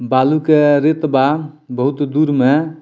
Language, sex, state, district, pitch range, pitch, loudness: Bhojpuri, male, Bihar, Muzaffarpur, 135-155 Hz, 145 Hz, -15 LUFS